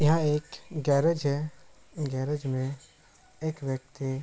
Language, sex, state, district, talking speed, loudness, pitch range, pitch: Hindi, male, Bihar, Bhagalpur, 125 wpm, -30 LUFS, 135-150 Hz, 140 Hz